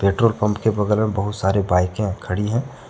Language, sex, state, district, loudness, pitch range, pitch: Hindi, male, Jharkhand, Deoghar, -20 LUFS, 100-110 Hz, 105 Hz